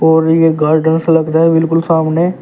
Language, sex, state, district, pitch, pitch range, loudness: Hindi, male, Uttar Pradesh, Shamli, 160 Hz, 160-165 Hz, -12 LUFS